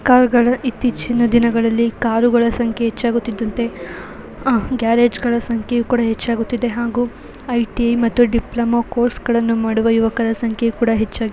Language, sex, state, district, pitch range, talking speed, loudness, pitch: Kannada, female, Karnataka, Belgaum, 230-240 Hz, 105 wpm, -17 LUFS, 235 Hz